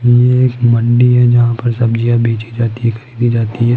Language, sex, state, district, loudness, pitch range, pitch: Hindi, male, Rajasthan, Jaipur, -12 LUFS, 115-120 Hz, 120 Hz